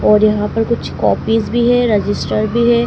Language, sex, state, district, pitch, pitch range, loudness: Hindi, female, Madhya Pradesh, Dhar, 225 Hz, 210-235 Hz, -15 LUFS